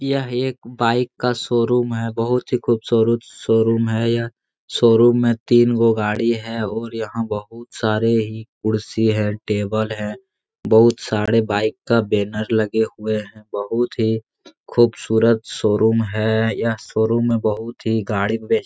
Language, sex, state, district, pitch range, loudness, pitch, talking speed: Hindi, male, Bihar, Jahanabad, 110-115 Hz, -19 LUFS, 115 Hz, 155 wpm